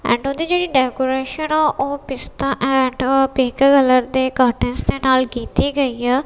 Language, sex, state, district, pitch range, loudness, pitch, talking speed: Punjabi, female, Punjab, Kapurthala, 255-275 Hz, -17 LUFS, 265 Hz, 165 wpm